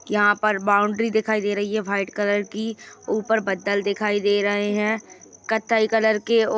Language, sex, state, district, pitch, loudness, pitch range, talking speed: Kumaoni, female, Uttarakhand, Tehri Garhwal, 210 Hz, -22 LUFS, 205-220 Hz, 190 wpm